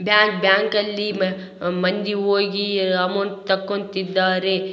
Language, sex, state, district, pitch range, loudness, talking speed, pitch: Kannada, male, Karnataka, Raichur, 190-200 Hz, -20 LUFS, 100 wpm, 195 Hz